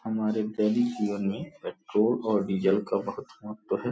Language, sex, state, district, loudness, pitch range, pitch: Hindi, male, Uttar Pradesh, Gorakhpur, -28 LUFS, 105-110 Hz, 105 Hz